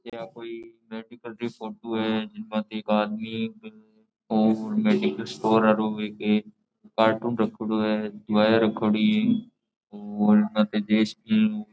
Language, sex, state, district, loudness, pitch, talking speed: Marwari, male, Rajasthan, Nagaur, -24 LUFS, 115 Hz, 100 wpm